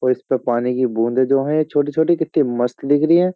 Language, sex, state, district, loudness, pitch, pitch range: Hindi, male, Uttar Pradesh, Jyotiba Phule Nagar, -18 LUFS, 135 Hz, 125-155 Hz